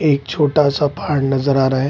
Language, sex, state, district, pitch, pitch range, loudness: Hindi, male, Bihar, Kishanganj, 140 Hz, 135-150 Hz, -17 LUFS